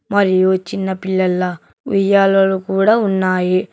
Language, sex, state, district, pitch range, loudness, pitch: Telugu, male, Telangana, Hyderabad, 185-195 Hz, -15 LUFS, 190 Hz